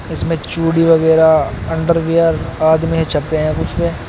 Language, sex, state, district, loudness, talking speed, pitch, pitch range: Hindi, male, Uttar Pradesh, Shamli, -14 LUFS, 145 wpm, 160 Hz, 160-165 Hz